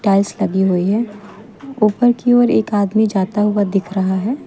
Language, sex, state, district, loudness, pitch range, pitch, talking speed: Hindi, female, Uttar Pradesh, Lucknow, -16 LUFS, 195-225 Hz, 210 Hz, 190 wpm